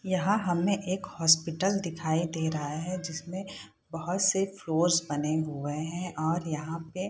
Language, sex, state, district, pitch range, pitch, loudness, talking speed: Hindi, female, Bihar, Saharsa, 160-185 Hz, 170 Hz, -29 LUFS, 160 wpm